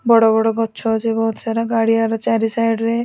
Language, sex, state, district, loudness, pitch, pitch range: Odia, female, Odisha, Khordha, -17 LUFS, 225 Hz, 225-230 Hz